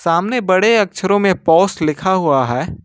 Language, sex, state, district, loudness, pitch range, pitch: Hindi, male, Jharkhand, Ranchi, -15 LUFS, 155-195 Hz, 185 Hz